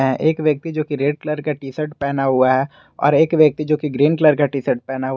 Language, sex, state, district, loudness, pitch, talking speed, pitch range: Hindi, male, Jharkhand, Garhwa, -18 LUFS, 150 Hz, 265 wpm, 135-155 Hz